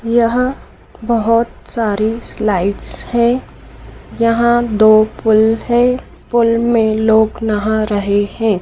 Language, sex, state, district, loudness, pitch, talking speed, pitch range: Hindi, female, Madhya Pradesh, Dhar, -14 LUFS, 225 Hz, 105 wpm, 215-235 Hz